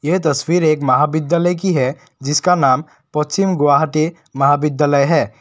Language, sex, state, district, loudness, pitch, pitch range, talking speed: Hindi, male, Assam, Kamrup Metropolitan, -16 LUFS, 150 Hz, 140-170 Hz, 135 wpm